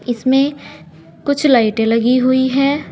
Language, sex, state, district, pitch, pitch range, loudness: Hindi, female, Uttar Pradesh, Saharanpur, 255 Hz, 225-275 Hz, -14 LUFS